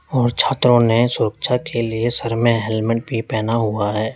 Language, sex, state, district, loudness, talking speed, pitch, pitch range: Hindi, male, Uttar Pradesh, Lalitpur, -18 LUFS, 185 wpm, 115 Hz, 110-120 Hz